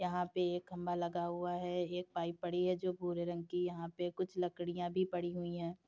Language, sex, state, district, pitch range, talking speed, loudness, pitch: Hindi, female, Uttar Pradesh, Etah, 175-180 Hz, 235 wpm, -39 LUFS, 175 Hz